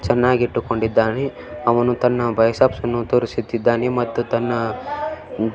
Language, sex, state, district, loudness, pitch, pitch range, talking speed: Kannada, male, Karnataka, Belgaum, -20 LUFS, 120 Hz, 115-125 Hz, 85 wpm